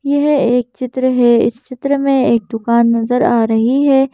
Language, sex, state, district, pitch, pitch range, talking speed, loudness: Hindi, female, Madhya Pradesh, Bhopal, 250 Hz, 235-270 Hz, 190 wpm, -14 LUFS